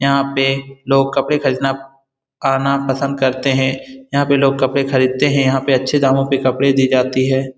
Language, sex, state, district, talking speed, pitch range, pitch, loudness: Hindi, male, Bihar, Saran, 190 wpm, 130-140 Hz, 135 Hz, -16 LUFS